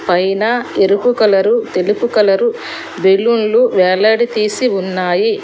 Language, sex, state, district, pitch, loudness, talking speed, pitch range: Telugu, female, Telangana, Hyderabad, 215 Hz, -13 LUFS, 100 wpm, 195-245 Hz